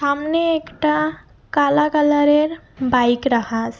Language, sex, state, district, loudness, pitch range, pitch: Bengali, female, Assam, Hailakandi, -18 LUFS, 260-305 Hz, 295 Hz